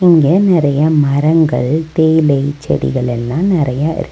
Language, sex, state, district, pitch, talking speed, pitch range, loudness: Tamil, female, Tamil Nadu, Nilgiris, 155 Hz, 115 wpm, 140-160 Hz, -13 LUFS